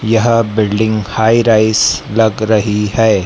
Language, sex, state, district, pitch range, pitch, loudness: Hindi, male, Madhya Pradesh, Dhar, 105-115 Hz, 110 Hz, -12 LUFS